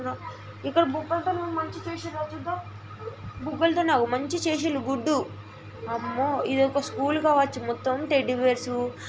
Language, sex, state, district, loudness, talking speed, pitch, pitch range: Telugu, female, Andhra Pradesh, Guntur, -26 LUFS, 110 wpm, 280 Hz, 250-315 Hz